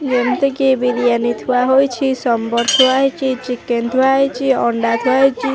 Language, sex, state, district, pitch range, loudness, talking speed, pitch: Odia, male, Odisha, Khordha, 240-270 Hz, -15 LUFS, 150 wpm, 255 Hz